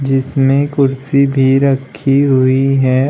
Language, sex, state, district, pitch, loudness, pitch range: Hindi, male, Uttar Pradesh, Shamli, 135 Hz, -13 LUFS, 130-140 Hz